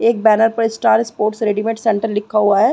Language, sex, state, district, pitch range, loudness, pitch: Hindi, female, Uttar Pradesh, Gorakhpur, 210-225 Hz, -16 LUFS, 220 Hz